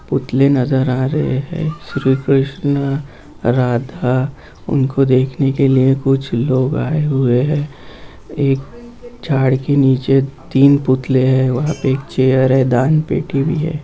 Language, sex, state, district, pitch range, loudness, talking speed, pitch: Hindi, male, West Bengal, Purulia, 130-145 Hz, -16 LUFS, 140 wpm, 135 Hz